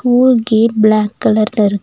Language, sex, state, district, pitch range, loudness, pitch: Tamil, female, Tamil Nadu, Nilgiris, 215-235 Hz, -12 LUFS, 220 Hz